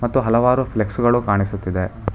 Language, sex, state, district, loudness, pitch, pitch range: Kannada, male, Karnataka, Bangalore, -19 LUFS, 110 Hz, 100-120 Hz